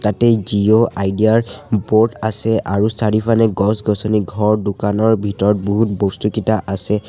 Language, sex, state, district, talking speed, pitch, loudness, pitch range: Assamese, male, Assam, Sonitpur, 135 wpm, 105 Hz, -16 LUFS, 100-110 Hz